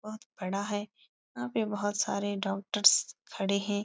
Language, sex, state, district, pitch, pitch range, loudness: Hindi, female, Uttar Pradesh, Etah, 205 Hz, 195-210 Hz, -30 LUFS